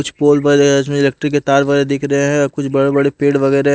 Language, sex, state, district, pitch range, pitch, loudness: Hindi, male, Haryana, Jhajjar, 140-145 Hz, 140 Hz, -14 LUFS